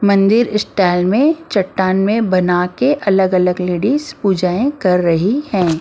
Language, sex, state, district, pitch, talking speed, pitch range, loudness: Hindi, female, Maharashtra, Mumbai Suburban, 195 Hz, 135 wpm, 180-230 Hz, -15 LUFS